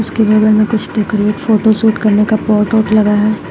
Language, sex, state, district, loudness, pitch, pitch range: Hindi, female, Uttar Pradesh, Shamli, -12 LUFS, 215 Hz, 210-220 Hz